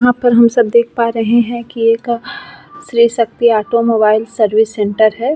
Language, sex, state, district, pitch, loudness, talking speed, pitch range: Hindi, female, Bihar, Vaishali, 235 Hz, -13 LUFS, 190 wpm, 225-235 Hz